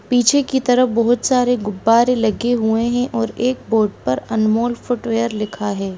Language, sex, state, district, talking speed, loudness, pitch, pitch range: Hindi, female, Bihar, Jamui, 180 wpm, -17 LUFS, 230 Hz, 220-245 Hz